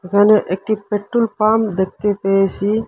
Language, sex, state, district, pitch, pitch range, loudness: Bengali, male, Assam, Hailakandi, 205 Hz, 195-215 Hz, -17 LUFS